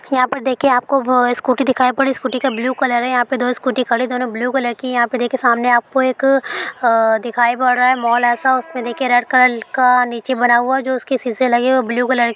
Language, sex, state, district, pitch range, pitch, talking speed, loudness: Hindi, female, Bihar, Jamui, 240-260 Hz, 250 Hz, 270 wpm, -16 LUFS